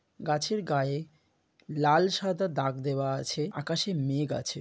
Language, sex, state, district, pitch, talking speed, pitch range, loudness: Bengali, male, West Bengal, Malda, 150 Hz, 130 wpm, 140-165 Hz, -29 LUFS